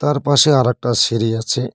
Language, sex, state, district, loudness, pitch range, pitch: Bengali, male, West Bengal, Cooch Behar, -15 LUFS, 115-145 Hz, 125 Hz